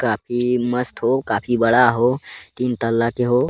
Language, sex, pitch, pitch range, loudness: Angika, male, 120 Hz, 115-125 Hz, -19 LUFS